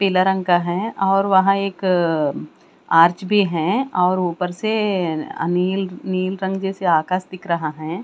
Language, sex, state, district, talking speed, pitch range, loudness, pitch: Hindi, female, Bihar, West Champaran, 165 wpm, 175-195 Hz, -19 LUFS, 185 Hz